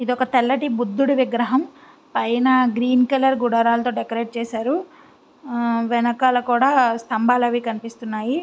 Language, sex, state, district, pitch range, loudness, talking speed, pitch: Telugu, female, Andhra Pradesh, Visakhapatnam, 235-260 Hz, -20 LUFS, 120 wpm, 245 Hz